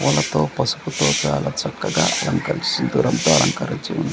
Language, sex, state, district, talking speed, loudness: Telugu, male, Andhra Pradesh, Manyam, 100 wpm, -19 LUFS